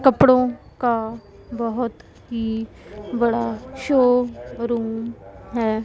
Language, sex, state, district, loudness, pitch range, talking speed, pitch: Hindi, female, Punjab, Pathankot, -22 LUFS, 225-245 Hz, 70 wpm, 235 Hz